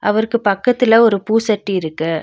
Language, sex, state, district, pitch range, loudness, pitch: Tamil, female, Tamil Nadu, Nilgiris, 195-225 Hz, -15 LUFS, 215 Hz